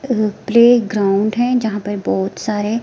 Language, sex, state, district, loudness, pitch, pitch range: Hindi, female, Himachal Pradesh, Shimla, -16 LUFS, 215 Hz, 205-235 Hz